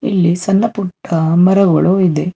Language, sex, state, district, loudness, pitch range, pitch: Kannada, male, Karnataka, Bangalore, -13 LUFS, 170-195 Hz, 180 Hz